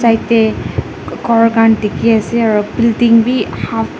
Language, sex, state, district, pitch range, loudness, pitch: Nagamese, female, Nagaland, Dimapur, 225-235 Hz, -13 LUFS, 230 Hz